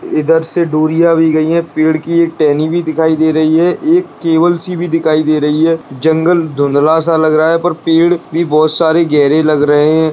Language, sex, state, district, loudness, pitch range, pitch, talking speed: Hindi, male, Bihar, Bhagalpur, -11 LUFS, 155-170 Hz, 160 Hz, 230 wpm